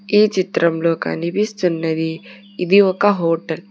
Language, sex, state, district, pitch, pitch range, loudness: Telugu, female, Telangana, Hyderabad, 180 Hz, 165-200 Hz, -18 LUFS